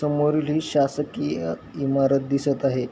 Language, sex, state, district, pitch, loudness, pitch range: Marathi, male, Maharashtra, Chandrapur, 140 Hz, -23 LUFS, 135-150 Hz